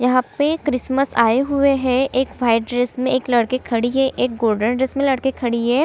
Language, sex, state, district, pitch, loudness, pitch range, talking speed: Hindi, female, Chhattisgarh, Kabirdham, 255 Hz, -19 LUFS, 240-270 Hz, 215 wpm